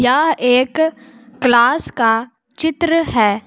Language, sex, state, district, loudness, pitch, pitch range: Hindi, female, Jharkhand, Palamu, -15 LUFS, 250 Hz, 235-315 Hz